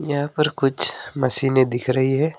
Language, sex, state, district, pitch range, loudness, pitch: Hindi, male, West Bengal, Alipurduar, 130-145 Hz, -18 LUFS, 135 Hz